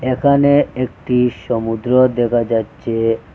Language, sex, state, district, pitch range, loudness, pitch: Bengali, male, Assam, Hailakandi, 115-130 Hz, -16 LUFS, 120 Hz